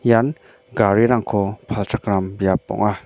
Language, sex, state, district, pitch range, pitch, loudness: Garo, male, Meghalaya, North Garo Hills, 100-115 Hz, 105 Hz, -19 LUFS